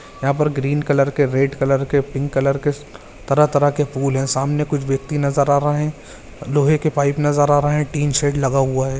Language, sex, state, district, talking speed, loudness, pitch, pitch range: Hindi, male, Chhattisgarh, Bilaspur, 225 wpm, -18 LUFS, 140 Hz, 135-145 Hz